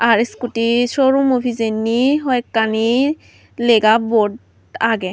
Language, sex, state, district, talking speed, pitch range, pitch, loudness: Chakma, female, Tripura, Unakoti, 105 wpm, 225-250 Hz, 235 Hz, -16 LUFS